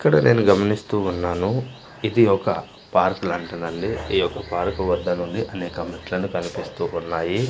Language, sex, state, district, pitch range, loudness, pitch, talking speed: Telugu, male, Andhra Pradesh, Manyam, 95-125 Hz, -22 LUFS, 110 Hz, 135 wpm